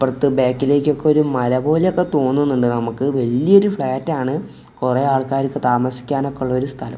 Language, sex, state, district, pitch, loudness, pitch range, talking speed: Malayalam, male, Kerala, Kozhikode, 135 Hz, -18 LUFS, 130-145 Hz, 145 wpm